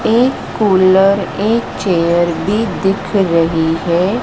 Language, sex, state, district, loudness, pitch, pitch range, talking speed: Hindi, female, Madhya Pradesh, Dhar, -14 LUFS, 190 Hz, 170-210 Hz, 115 wpm